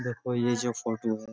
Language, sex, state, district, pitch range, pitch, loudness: Hindi, male, Uttar Pradesh, Budaun, 110-120 Hz, 120 Hz, -30 LUFS